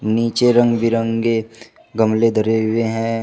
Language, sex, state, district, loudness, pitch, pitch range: Hindi, male, Uttar Pradesh, Shamli, -17 LUFS, 115 Hz, 110-115 Hz